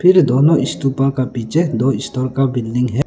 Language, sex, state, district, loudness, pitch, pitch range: Hindi, male, Arunachal Pradesh, Lower Dibang Valley, -16 LUFS, 135 Hz, 125-140 Hz